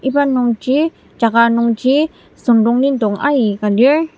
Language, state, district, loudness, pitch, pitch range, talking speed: Ao, Nagaland, Dimapur, -15 LUFS, 250 Hz, 230-280 Hz, 100 wpm